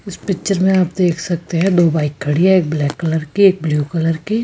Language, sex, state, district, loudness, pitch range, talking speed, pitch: Hindi, female, Rajasthan, Jaipur, -16 LUFS, 160-190 Hz, 270 wpm, 170 Hz